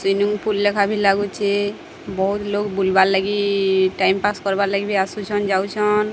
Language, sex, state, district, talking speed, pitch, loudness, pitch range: Odia, female, Odisha, Sambalpur, 165 wpm, 200 Hz, -19 LUFS, 195-205 Hz